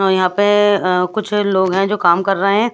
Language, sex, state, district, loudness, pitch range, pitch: Hindi, female, Odisha, Khordha, -15 LUFS, 185-205 Hz, 195 Hz